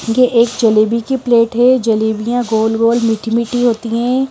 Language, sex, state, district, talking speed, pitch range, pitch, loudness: Hindi, female, Himachal Pradesh, Shimla, 155 wpm, 225-245 Hz, 235 Hz, -14 LUFS